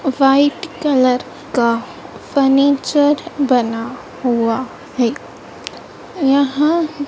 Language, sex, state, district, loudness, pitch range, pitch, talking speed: Hindi, female, Madhya Pradesh, Dhar, -16 LUFS, 250-290 Hz, 275 Hz, 70 wpm